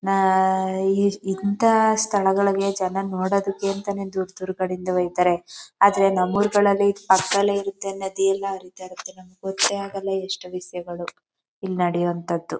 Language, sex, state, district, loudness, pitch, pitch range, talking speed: Kannada, female, Karnataka, Chamarajanagar, -22 LUFS, 195 Hz, 185-200 Hz, 115 wpm